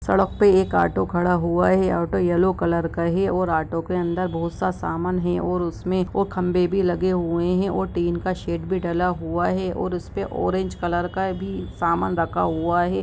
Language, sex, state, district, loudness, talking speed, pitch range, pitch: Hindi, male, Jharkhand, Jamtara, -22 LUFS, 205 wpm, 170-185 Hz, 175 Hz